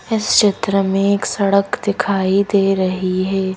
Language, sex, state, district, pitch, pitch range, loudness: Hindi, female, Madhya Pradesh, Bhopal, 195 Hz, 190-200 Hz, -16 LUFS